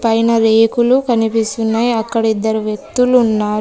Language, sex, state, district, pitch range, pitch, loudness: Telugu, female, Telangana, Komaram Bheem, 220-235 Hz, 225 Hz, -14 LUFS